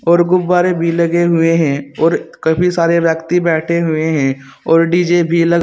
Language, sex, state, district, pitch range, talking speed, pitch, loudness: Hindi, male, Uttar Pradesh, Saharanpur, 160-175 Hz, 180 wpm, 170 Hz, -14 LUFS